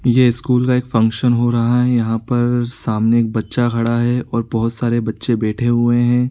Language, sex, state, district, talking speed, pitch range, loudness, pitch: Hindi, male, Bihar, Supaul, 220 wpm, 115-125 Hz, -16 LUFS, 120 Hz